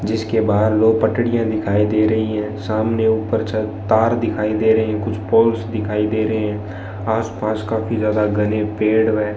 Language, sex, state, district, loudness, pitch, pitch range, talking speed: Hindi, male, Rajasthan, Bikaner, -18 LUFS, 110 Hz, 105-110 Hz, 185 wpm